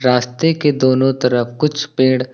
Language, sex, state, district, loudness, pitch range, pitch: Hindi, male, Uttar Pradesh, Lucknow, -16 LUFS, 125-145 Hz, 130 Hz